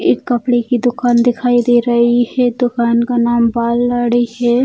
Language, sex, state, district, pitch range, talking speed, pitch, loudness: Hindi, female, Bihar, Bhagalpur, 235-245 Hz, 195 wpm, 240 Hz, -14 LUFS